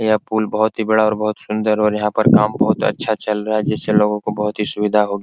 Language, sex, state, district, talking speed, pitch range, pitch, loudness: Hindi, male, Bihar, Supaul, 300 wpm, 105-110 Hz, 105 Hz, -17 LUFS